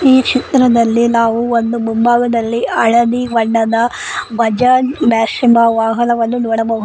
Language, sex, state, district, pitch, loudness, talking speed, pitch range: Kannada, female, Karnataka, Koppal, 235 Hz, -13 LUFS, 105 wpm, 225-245 Hz